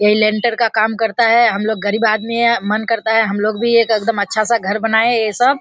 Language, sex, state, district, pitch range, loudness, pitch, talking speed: Hindi, female, Bihar, Kishanganj, 215-230 Hz, -15 LUFS, 225 Hz, 235 wpm